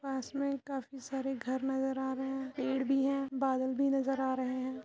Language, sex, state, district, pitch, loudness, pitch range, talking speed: Hindi, female, Uttar Pradesh, Muzaffarnagar, 265 Hz, -34 LUFS, 265-270 Hz, 220 wpm